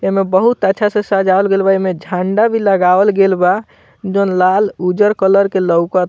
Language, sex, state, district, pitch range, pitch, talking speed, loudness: Bhojpuri, male, Bihar, Muzaffarpur, 185-200 Hz, 195 Hz, 195 wpm, -13 LUFS